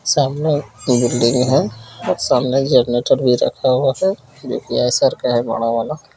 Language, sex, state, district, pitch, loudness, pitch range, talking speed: Kumaoni, male, Uttarakhand, Uttarkashi, 125 Hz, -17 LUFS, 120-135 Hz, 165 wpm